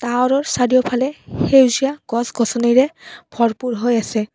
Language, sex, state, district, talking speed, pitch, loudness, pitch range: Assamese, female, Assam, Kamrup Metropolitan, 95 wpm, 245 Hz, -17 LUFS, 235-265 Hz